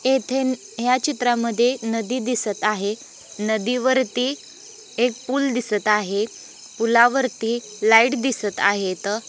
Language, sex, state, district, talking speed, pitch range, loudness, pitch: Marathi, female, Maharashtra, Pune, 105 wpm, 215-255 Hz, -21 LUFS, 235 Hz